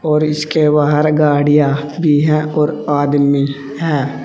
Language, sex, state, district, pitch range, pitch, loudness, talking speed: Hindi, male, Uttar Pradesh, Saharanpur, 145-150 Hz, 150 Hz, -14 LUFS, 125 wpm